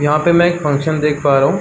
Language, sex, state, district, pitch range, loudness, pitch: Hindi, male, Chhattisgarh, Bastar, 145-170 Hz, -14 LUFS, 150 Hz